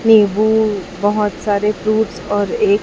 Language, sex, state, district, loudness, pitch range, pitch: Hindi, male, Chhattisgarh, Raipur, -16 LUFS, 205-220 Hz, 210 Hz